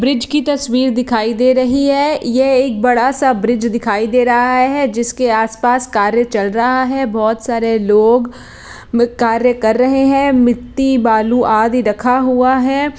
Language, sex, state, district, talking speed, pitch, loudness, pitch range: Hindi, female, Bihar, Jahanabad, 165 wpm, 245 Hz, -13 LUFS, 230-260 Hz